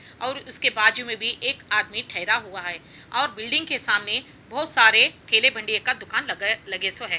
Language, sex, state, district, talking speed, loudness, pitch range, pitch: Hindi, female, Bihar, Saran, 190 wpm, -20 LUFS, 200-260 Hz, 230 Hz